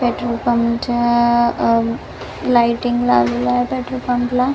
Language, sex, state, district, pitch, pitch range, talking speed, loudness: Marathi, female, Maharashtra, Nagpur, 240 Hz, 235-245 Hz, 145 wpm, -17 LUFS